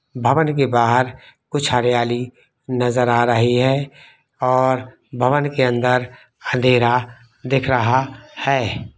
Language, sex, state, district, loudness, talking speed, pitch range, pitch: Hindi, male, Bihar, East Champaran, -18 LUFS, 115 wpm, 120-135 Hz, 125 Hz